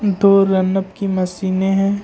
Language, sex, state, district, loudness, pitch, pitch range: Hindi, male, Jharkhand, Ranchi, -16 LUFS, 195 Hz, 190-195 Hz